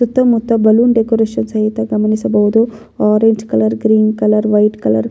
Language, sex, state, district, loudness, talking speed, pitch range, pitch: Kannada, female, Karnataka, Bellary, -13 LUFS, 155 wpm, 210-225 Hz, 215 Hz